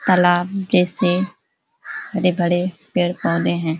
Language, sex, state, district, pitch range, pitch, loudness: Hindi, female, Uttar Pradesh, Ghazipur, 175-190 Hz, 180 Hz, -19 LUFS